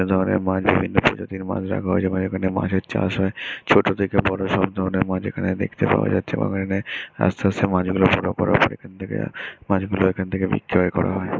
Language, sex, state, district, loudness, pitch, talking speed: Bengali, male, West Bengal, Dakshin Dinajpur, -21 LUFS, 95 Hz, 200 wpm